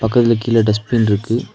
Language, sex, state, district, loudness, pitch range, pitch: Tamil, male, Tamil Nadu, Nilgiris, -16 LUFS, 110-115 Hz, 115 Hz